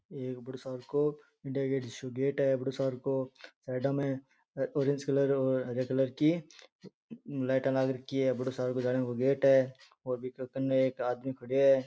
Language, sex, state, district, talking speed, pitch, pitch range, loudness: Rajasthani, male, Rajasthan, Churu, 140 wpm, 135 Hz, 130-135 Hz, -32 LUFS